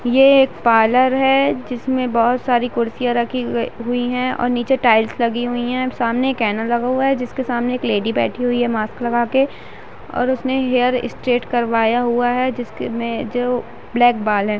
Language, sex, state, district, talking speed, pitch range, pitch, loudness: Hindi, female, Bihar, East Champaran, 195 wpm, 235-255 Hz, 245 Hz, -18 LUFS